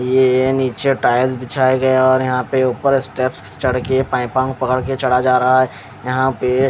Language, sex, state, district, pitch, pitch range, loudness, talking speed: Hindi, male, Odisha, Khordha, 130 Hz, 125-130 Hz, -16 LUFS, 180 wpm